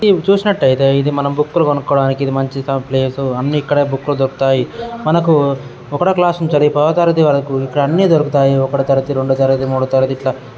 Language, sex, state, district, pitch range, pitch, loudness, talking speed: Telugu, male, Andhra Pradesh, Srikakulam, 135-150 Hz, 140 Hz, -14 LUFS, 180 wpm